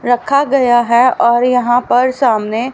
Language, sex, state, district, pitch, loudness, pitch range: Hindi, female, Haryana, Rohtak, 245 Hz, -12 LUFS, 235-255 Hz